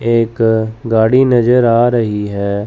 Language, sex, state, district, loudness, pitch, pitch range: Hindi, male, Chandigarh, Chandigarh, -13 LUFS, 115 Hz, 110-120 Hz